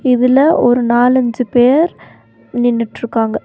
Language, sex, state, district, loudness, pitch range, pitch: Tamil, female, Tamil Nadu, Nilgiris, -13 LUFS, 240-255 Hz, 245 Hz